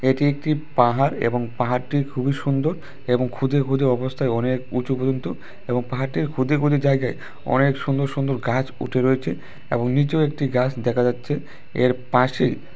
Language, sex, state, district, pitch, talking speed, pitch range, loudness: Bengali, male, Tripura, West Tripura, 130 Hz, 155 wpm, 125-140 Hz, -22 LUFS